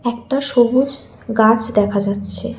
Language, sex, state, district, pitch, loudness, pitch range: Bengali, female, West Bengal, Alipurduar, 235 Hz, -16 LUFS, 210-260 Hz